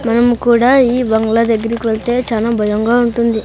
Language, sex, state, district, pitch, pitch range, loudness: Telugu, female, Andhra Pradesh, Sri Satya Sai, 235 Hz, 225-240 Hz, -13 LUFS